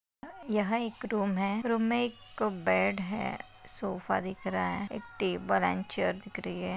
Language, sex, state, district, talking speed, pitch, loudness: Hindi, female, Maharashtra, Nagpur, 175 wpm, 195 Hz, -32 LUFS